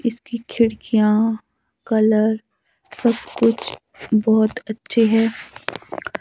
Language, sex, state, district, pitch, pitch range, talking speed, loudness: Hindi, male, Himachal Pradesh, Shimla, 225 Hz, 220-235 Hz, 75 wpm, -20 LUFS